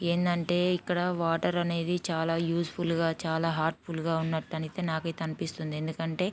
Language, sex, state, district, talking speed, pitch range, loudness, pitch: Telugu, female, Andhra Pradesh, Guntur, 140 wpm, 160-175 Hz, -30 LUFS, 165 Hz